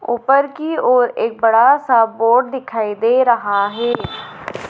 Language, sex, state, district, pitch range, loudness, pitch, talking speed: Hindi, female, Madhya Pradesh, Dhar, 225-255 Hz, -15 LUFS, 240 Hz, 140 wpm